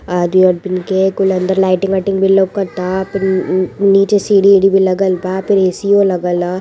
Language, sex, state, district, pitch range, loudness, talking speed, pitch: Hindi, female, Uttar Pradesh, Varanasi, 185-195 Hz, -13 LUFS, 155 wpm, 190 Hz